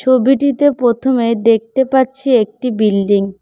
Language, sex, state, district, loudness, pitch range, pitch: Bengali, female, West Bengal, Cooch Behar, -14 LUFS, 220-265 Hz, 250 Hz